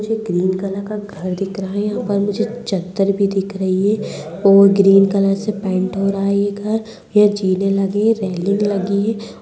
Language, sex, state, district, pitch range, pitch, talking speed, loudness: Hindi, female, Bihar, Purnia, 195-205 Hz, 200 Hz, 210 wpm, -17 LUFS